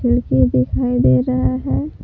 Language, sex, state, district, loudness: Hindi, female, Jharkhand, Palamu, -17 LUFS